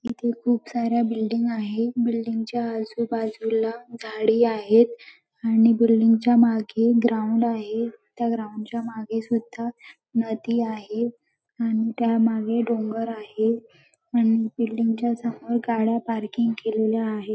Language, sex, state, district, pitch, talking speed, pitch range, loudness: Marathi, female, Maharashtra, Dhule, 230 Hz, 115 wpm, 225-235 Hz, -23 LUFS